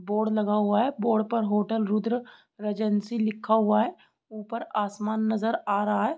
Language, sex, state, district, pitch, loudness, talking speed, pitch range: Hindi, female, Bihar, East Champaran, 215 Hz, -26 LUFS, 175 wpm, 210-225 Hz